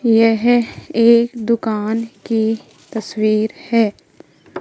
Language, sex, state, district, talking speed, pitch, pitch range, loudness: Hindi, female, Madhya Pradesh, Katni, 80 wpm, 225 Hz, 220-235 Hz, -17 LUFS